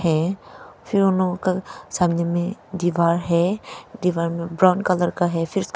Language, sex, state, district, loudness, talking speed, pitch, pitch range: Hindi, female, Arunachal Pradesh, Papum Pare, -21 LUFS, 165 wpm, 180 Hz, 170-185 Hz